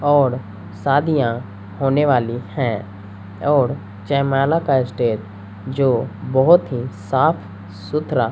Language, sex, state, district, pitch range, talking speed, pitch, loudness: Hindi, female, Bihar, West Champaran, 100-140 Hz, 100 wpm, 125 Hz, -19 LUFS